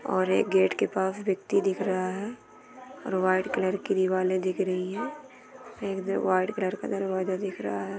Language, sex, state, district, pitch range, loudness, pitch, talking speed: Hindi, female, Chhattisgarh, Bilaspur, 185-200 Hz, -28 LUFS, 190 Hz, 195 wpm